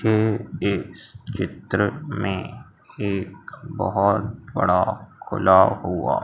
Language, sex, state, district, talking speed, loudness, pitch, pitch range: Hindi, male, Madhya Pradesh, Umaria, 95 wpm, -22 LUFS, 105 Hz, 95-110 Hz